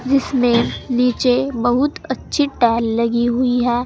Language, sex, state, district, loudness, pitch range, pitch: Hindi, female, Uttar Pradesh, Saharanpur, -17 LUFS, 240-260 Hz, 245 Hz